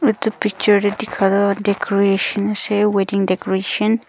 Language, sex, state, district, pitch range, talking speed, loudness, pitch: Nagamese, female, Nagaland, Kohima, 195-210 Hz, 145 wpm, -18 LUFS, 200 Hz